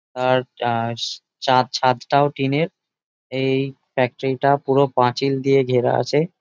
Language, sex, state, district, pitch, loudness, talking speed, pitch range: Bengali, male, West Bengal, Jalpaiguri, 135 Hz, -20 LUFS, 130 wpm, 125-140 Hz